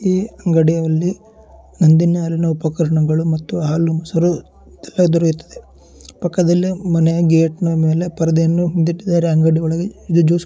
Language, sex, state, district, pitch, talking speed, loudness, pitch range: Kannada, male, Karnataka, Shimoga, 165 Hz, 110 wpm, -16 LUFS, 160-175 Hz